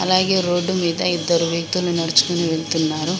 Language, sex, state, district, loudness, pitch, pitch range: Telugu, female, Telangana, Mahabubabad, -19 LUFS, 170 Hz, 165-180 Hz